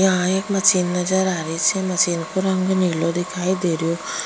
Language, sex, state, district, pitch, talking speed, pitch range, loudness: Rajasthani, female, Rajasthan, Churu, 185 Hz, 170 wpm, 175-190 Hz, -20 LUFS